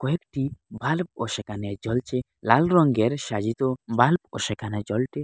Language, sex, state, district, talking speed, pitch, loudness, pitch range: Bengali, male, Assam, Hailakandi, 115 wpm, 125 Hz, -25 LUFS, 110-140 Hz